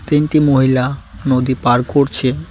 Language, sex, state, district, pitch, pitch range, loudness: Bengali, male, West Bengal, Cooch Behar, 130 Hz, 125-140 Hz, -15 LUFS